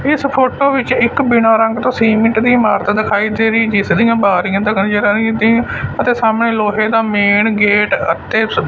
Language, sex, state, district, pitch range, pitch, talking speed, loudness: Punjabi, male, Punjab, Fazilka, 210-235 Hz, 225 Hz, 185 wpm, -13 LUFS